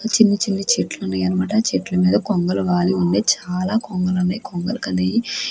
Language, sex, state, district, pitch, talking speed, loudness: Telugu, female, Andhra Pradesh, Krishna, 180 Hz, 165 wpm, -19 LUFS